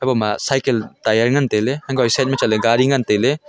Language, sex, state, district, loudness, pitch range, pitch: Wancho, male, Arunachal Pradesh, Longding, -17 LUFS, 110-135 Hz, 130 Hz